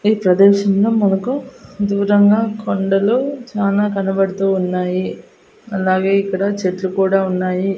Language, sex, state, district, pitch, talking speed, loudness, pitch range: Telugu, female, Andhra Pradesh, Annamaya, 200 Hz, 100 wpm, -16 LUFS, 190-210 Hz